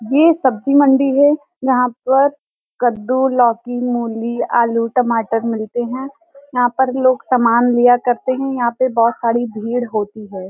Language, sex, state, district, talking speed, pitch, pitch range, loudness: Hindi, female, Uttar Pradesh, Varanasi, 155 wpm, 245 Hz, 230-265 Hz, -16 LUFS